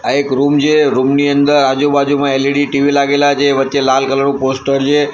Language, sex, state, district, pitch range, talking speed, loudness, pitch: Gujarati, male, Gujarat, Gandhinagar, 135-145 Hz, 200 wpm, -12 LUFS, 140 Hz